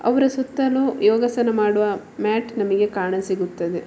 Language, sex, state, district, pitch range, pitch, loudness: Kannada, female, Karnataka, Mysore, 195-240 Hz, 210 Hz, -21 LUFS